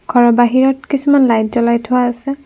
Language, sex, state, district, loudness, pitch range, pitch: Assamese, female, Assam, Kamrup Metropolitan, -13 LUFS, 240-275 Hz, 250 Hz